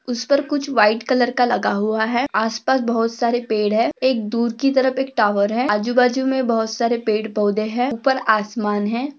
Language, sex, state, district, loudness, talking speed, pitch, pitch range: Hindi, female, Maharashtra, Pune, -19 LUFS, 190 wpm, 235 Hz, 220-260 Hz